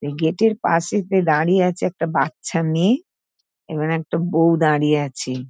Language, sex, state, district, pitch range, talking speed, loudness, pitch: Bengali, female, West Bengal, North 24 Parganas, 150-180 Hz, 140 wpm, -19 LUFS, 165 Hz